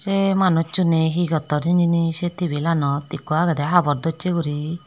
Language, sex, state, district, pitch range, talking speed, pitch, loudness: Chakma, female, Tripura, Dhalai, 155-175 Hz, 150 wpm, 165 Hz, -20 LUFS